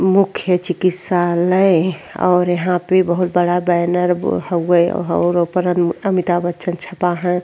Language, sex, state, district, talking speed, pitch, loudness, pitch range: Bhojpuri, female, Uttar Pradesh, Ghazipur, 130 wpm, 180 Hz, -17 LUFS, 175-185 Hz